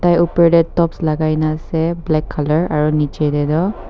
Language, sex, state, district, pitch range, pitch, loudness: Nagamese, female, Nagaland, Kohima, 155-170 Hz, 155 Hz, -16 LUFS